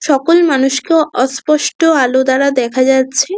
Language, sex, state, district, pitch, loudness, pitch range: Bengali, female, West Bengal, Kolkata, 270 Hz, -12 LUFS, 260-315 Hz